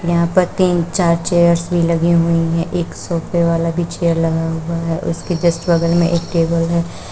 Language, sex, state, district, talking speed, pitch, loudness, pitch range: Hindi, female, Uttar Pradesh, Shamli, 200 wpm, 170 Hz, -16 LUFS, 165-170 Hz